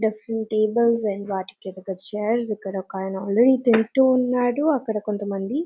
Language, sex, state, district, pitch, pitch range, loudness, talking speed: Telugu, female, Telangana, Nalgonda, 215 Hz, 195-240 Hz, -22 LUFS, 160 wpm